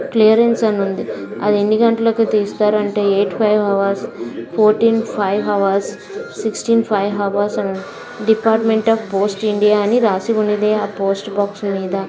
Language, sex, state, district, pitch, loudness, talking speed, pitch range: Telugu, female, Andhra Pradesh, Visakhapatnam, 210 Hz, -16 LUFS, 120 wpm, 200-220 Hz